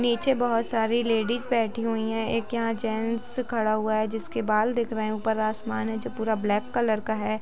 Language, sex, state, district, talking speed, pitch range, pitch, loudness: Hindi, female, Bihar, East Champaran, 220 wpm, 215-235 Hz, 225 Hz, -26 LUFS